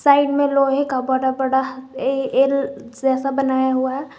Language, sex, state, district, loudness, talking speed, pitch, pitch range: Hindi, female, Jharkhand, Garhwa, -19 LUFS, 170 wpm, 265 Hz, 260-275 Hz